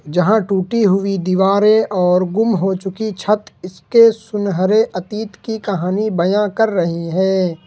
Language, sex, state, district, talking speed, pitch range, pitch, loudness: Hindi, male, Jharkhand, Ranchi, 140 wpm, 185-215 Hz, 195 Hz, -16 LUFS